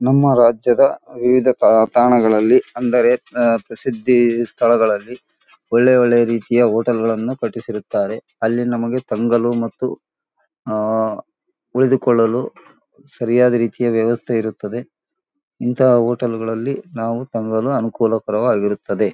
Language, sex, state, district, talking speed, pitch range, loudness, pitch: Kannada, male, Karnataka, Gulbarga, 90 wpm, 115-125 Hz, -17 LUFS, 120 Hz